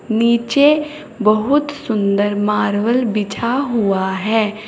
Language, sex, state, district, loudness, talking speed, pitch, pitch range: Hindi, female, Uttar Pradesh, Saharanpur, -16 LUFS, 90 wpm, 225 Hz, 210-255 Hz